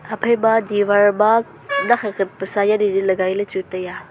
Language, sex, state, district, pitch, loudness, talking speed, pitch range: Wancho, female, Arunachal Pradesh, Longding, 205 Hz, -18 LUFS, 220 wpm, 195-225 Hz